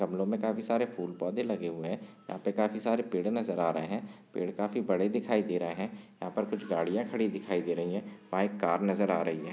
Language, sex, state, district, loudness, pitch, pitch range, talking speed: Hindi, male, Maharashtra, Nagpur, -32 LUFS, 100 Hz, 90-110 Hz, 260 wpm